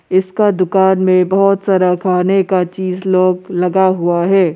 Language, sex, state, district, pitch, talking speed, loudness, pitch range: Hindi, male, Arunachal Pradesh, Lower Dibang Valley, 185 Hz, 155 wpm, -13 LUFS, 180-190 Hz